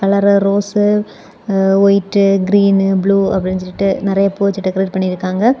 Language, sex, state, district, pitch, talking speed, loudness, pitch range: Tamil, female, Tamil Nadu, Kanyakumari, 195 Hz, 130 wpm, -14 LUFS, 190-200 Hz